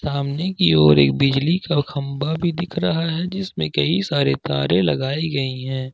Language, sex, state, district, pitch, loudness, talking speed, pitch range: Hindi, male, Jharkhand, Ranchi, 140 Hz, -20 LUFS, 180 wpm, 130-165 Hz